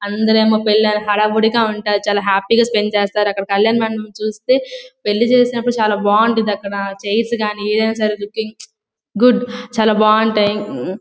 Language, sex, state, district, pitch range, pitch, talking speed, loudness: Telugu, female, Andhra Pradesh, Guntur, 210-225 Hz, 215 Hz, 135 wpm, -16 LUFS